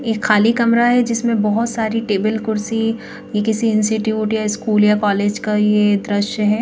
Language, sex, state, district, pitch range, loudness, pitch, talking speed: Hindi, female, Madhya Pradesh, Bhopal, 210-225 Hz, -17 LUFS, 220 Hz, 180 wpm